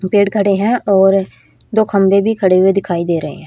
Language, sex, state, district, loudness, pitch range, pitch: Hindi, female, Haryana, Rohtak, -13 LUFS, 190-205 Hz, 195 Hz